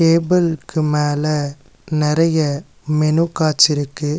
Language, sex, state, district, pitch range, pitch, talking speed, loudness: Tamil, male, Tamil Nadu, Nilgiris, 150-165 Hz, 155 Hz, 85 wpm, -17 LUFS